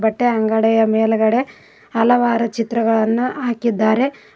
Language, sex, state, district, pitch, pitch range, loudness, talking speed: Kannada, female, Karnataka, Koppal, 230 Hz, 220-240 Hz, -17 LUFS, 80 wpm